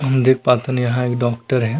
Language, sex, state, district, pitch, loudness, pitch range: Chhattisgarhi, male, Chhattisgarh, Rajnandgaon, 125 Hz, -18 LUFS, 120-130 Hz